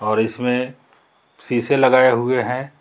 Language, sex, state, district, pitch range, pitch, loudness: Hindi, male, Jharkhand, Garhwa, 120-130 Hz, 125 Hz, -18 LUFS